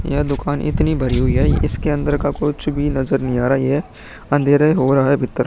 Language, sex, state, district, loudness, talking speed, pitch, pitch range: Hindi, male, Uttar Pradesh, Muzaffarnagar, -17 LUFS, 240 wpm, 140 Hz, 135-145 Hz